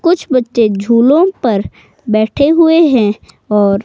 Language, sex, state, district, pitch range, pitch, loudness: Hindi, female, Himachal Pradesh, Shimla, 215-320 Hz, 240 Hz, -11 LUFS